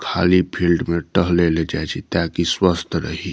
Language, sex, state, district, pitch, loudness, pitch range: Maithili, male, Bihar, Saharsa, 85 Hz, -19 LUFS, 85-90 Hz